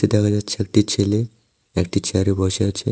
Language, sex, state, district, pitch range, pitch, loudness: Bengali, male, Tripura, West Tripura, 100-110 Hz, 105 Hz, -20 LUFS